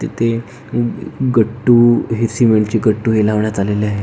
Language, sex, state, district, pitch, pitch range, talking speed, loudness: Marathi, male, Maharashtra, Pune, 115 Hz, 105-120 Hz, 165 wpm, -15 LUFS